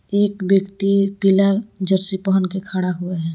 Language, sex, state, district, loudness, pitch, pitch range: Hindi, female, Jharkhand, Palamu, -18 LUFS, 195 Hz, 190-195 Hz